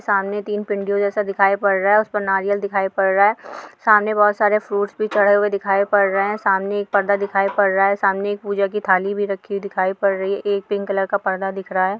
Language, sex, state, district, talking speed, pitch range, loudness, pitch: Hindi, female, Uttar Pradesh, Budaun, 260 wpm, 195-205 Hz, -19 LUFS, 200 Hz